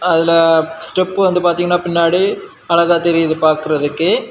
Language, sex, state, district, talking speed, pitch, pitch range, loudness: Tamil, male, Tamil Nadu, Kanyakumari, 110 wpm, 170 Hz, 160-175 Hz, -14 LUFS